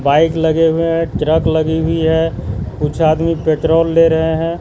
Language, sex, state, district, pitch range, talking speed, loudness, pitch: Hindi, male, Bihar, Katihar, 155-165 Hz, 180 wpm, -14 LUFS, 160 Hz